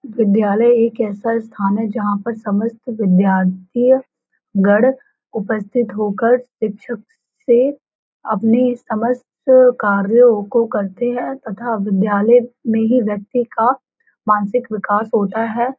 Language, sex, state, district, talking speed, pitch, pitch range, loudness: Hindi, female, Uttar Pradesh, Varanasi, 110 wpm, 230 Hz, 210-245 Hz, -16 LUFS